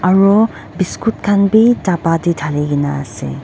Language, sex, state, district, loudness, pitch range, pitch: Nagamese, female, Nagaland, Dimapur, -15 LUFS, 150-205 Hz, 185 Hz